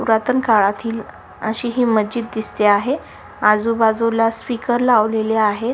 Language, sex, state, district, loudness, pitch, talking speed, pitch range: Marathi, female, Maharashtra, Sindhudurg, -18 LUFS, 225 Hz, 115 wpm, 220-240 Hz